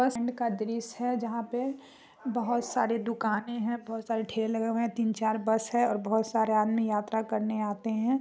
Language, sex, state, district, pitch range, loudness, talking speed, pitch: Hindi, female, Bihar, Muzaffarpur, 220-235 Hz, -30 LUFS, 160 wpm, 225 Hz